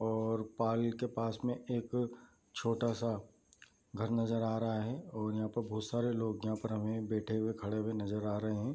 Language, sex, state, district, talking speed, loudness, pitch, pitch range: Hindi, male, Bihar, Bhagalpur, 200 wpm, -37 LUFS, 110 Hz, 110-115 Hz